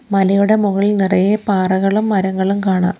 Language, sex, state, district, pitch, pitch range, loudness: Malayalam, female, Kerala, Kollam, 195 Hz, 190-205 Hz, -15 LUFS